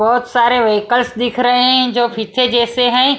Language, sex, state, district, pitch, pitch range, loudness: Hindi, female, Punjab, Kapurthala, 245 Hz, 235-250 Hz, -14 LUFS